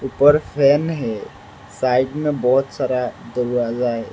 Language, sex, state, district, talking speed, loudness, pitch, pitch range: Hindi, male, Assam, Hailakandi, 130 wpm, -19 LUFS, 130 Hz, 120-140 Hz